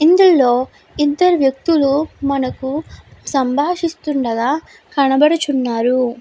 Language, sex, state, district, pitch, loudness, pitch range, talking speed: Telugu, female, Andhra Pradesh, Guntur, 280 Hz, -16 LUFS, 260-315 Hz, 60 wpm